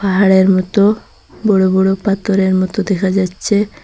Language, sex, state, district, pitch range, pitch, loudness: Bengali, female, Assam, Hailakandi, 190-205 Hz, 195 Hz, -14 LUFS